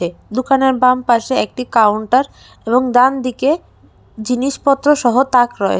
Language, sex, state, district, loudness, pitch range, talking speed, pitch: Bengali, female, Tripura, West Tripura, -15 LUFS, 240-265 Hz, 105 wpm, 255 Hz